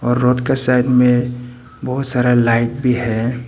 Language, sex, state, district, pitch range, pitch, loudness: Hindi, male, Arunachal Pradesh, Papum Pare, 120-125 Hz, 125 Hz, -15 LUFS